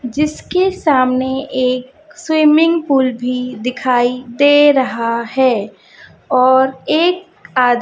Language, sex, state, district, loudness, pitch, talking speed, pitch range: Hindi, female, Chhattisgarh, Raipur, -14 LUFS, 260 Hz, 100 wpm, 250-300 Hz